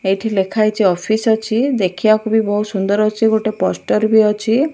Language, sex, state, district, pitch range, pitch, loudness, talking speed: Odia, male, Odisha, Malkangiri, 205-220 Hz, 215 Hz, -16 LUFS, 175 wpm